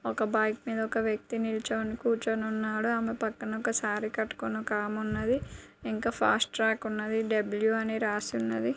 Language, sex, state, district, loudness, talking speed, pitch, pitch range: Telugu, female, Andhra Pradesh, Guntur, -30 LUFS, 155 wpm, 220 Hz, 215-225 Hz